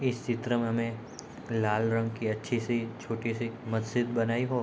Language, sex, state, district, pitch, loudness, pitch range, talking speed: Hindi, male, Bihar, Gopalganj, 115 Hz, -31 LUFS, 115-120 Hz, 170 wpm